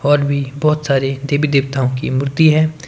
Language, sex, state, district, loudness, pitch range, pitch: Hindi, male, Himachal Pradesh, Shimla, -16 LUFS, 135-155 Hz, 140 Hz